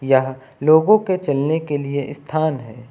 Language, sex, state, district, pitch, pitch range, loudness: Hindi, male, Uttar Pradesh, Lucknow, 140 Hz, 130-155 Hz, -18 LUFS